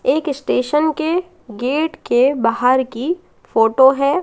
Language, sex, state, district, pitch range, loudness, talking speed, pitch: Hindi, female, Madhya Pradesh, Katni, 250-315 Hz, -17 LUFS, 125 wpm, 275 Hz